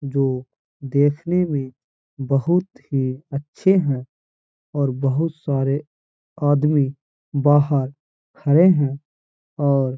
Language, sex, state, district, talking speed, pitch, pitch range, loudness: Hindi, male, Uttar Pradesh, Hamirpur, 95 wpm, 140 Hz, 135-150 Hz, -20 LUFS